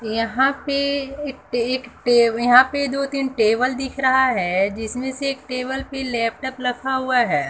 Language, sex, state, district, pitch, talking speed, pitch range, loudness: Hindi, female, Bihar, West Champaran, 260 Hz, 175 wpm, 235-270 Hz, -20 LUFS